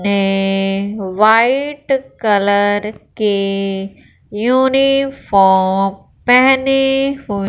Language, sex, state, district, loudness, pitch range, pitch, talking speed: Hindi, female, Punjab, Fazilka, -14 LUFS, 195-265 Hz, 210 Hz, 55 wpm